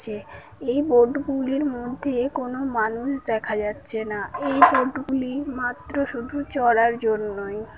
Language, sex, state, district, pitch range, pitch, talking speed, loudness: Bengali, female, West Bengal, Paschim Medinipur, 225-275 Hz, 250 Hz, 140 wpm, -23 LUFS